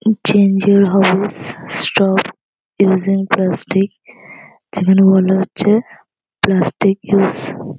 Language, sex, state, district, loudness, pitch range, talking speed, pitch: Bengali, female, West Bengal, North 24 Parganas, -14 LUFS, 190-200 Hz, 100 wpm, 195 Hz